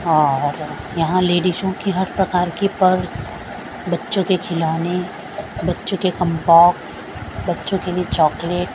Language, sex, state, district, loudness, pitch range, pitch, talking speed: Hindi, female, Chhattisgarh, Raipur, -19 LUFS, 170-190 Hz, 180 Hz, 130 wpm